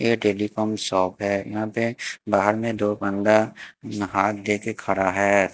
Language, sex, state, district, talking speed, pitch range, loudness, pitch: Hindi, male, Haryana, Jhajjar, 160 wpm, 100-110 Hz, -23 LUFS, 105 Hz